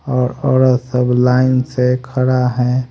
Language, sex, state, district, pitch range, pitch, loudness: Hindi, male, Haryana, Rohtak, 125-130 Hz, 125 Hz, -15 LUFS